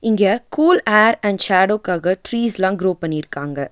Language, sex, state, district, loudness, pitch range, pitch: Tamil, female, Tamil Nadu, Nilgiris, -17 LUFS, 180-220 Hz, 195 Hz